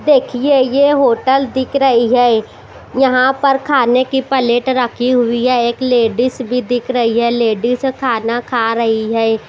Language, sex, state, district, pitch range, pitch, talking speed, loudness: Hindi, female, Bihar, Katihar, 235-265 Hz, 250 Hz, 160 wpm, -14 LUFS